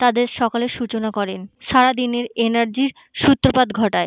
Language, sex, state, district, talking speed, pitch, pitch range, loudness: Bengali, female, West Bengal, Malda, 130 wpm, 240 Hz, 225-250 Hz, -19 LUFS